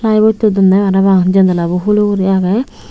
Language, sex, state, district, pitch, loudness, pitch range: Chakma, female, Tripura, Unakoti, 195 Hz, -12 LUFS, 190-210 Hz